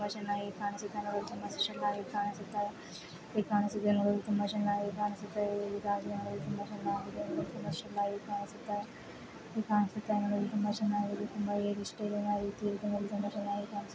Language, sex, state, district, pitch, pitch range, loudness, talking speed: Kannada, female, Karnataka, Chamarajanagar, 205 Hz, 205-210 Hz, -35 LUFS, 80 wpm